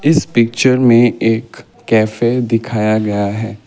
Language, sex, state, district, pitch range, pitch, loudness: Hindi, male, Assam, Kamrup Metropolitan, 110-120 Hz, 115 Hz, -14 LUFS